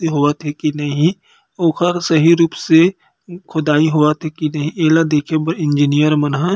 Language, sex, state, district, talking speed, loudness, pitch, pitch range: Chhattisgarhi, male, Chhattisgarh, Kabirdham, 190 wpm, -15 LUFS, 155 Hz, 150-165 Hz